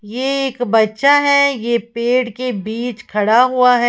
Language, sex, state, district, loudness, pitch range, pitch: Hindi, female, Uttar Pradesh, Lalitpur, -15 LUFS, 230-255 Hz, 245 Hz